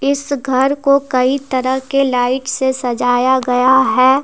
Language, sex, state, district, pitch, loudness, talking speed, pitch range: Hindi, female, Jharkhand, Deoghar, 260 Hz, -15 LUFS, 155 wpm, 255-275 Hz